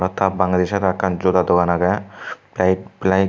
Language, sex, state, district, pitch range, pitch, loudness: Chakma, male, Tripura, Dhalai, 90-95 Hz, 95 Hz, -19 LUFS